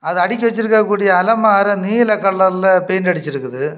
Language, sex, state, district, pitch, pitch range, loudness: Tamil, male, Tamil Nadu, Kanyakumari, 195 Hz, 180-215 Hz, -14 LUFS